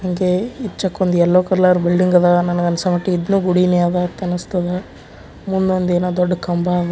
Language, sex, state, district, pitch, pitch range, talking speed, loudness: Kannada, male, Karnataka, Bijapur, 180 Hz, 175-185 Hz, 145 wpm, -17 LUFS